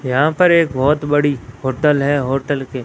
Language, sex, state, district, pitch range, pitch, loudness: Hindi, male, Rajasthan, Bikaner, 130-150 Hz, 145 Hz, -16 LUFS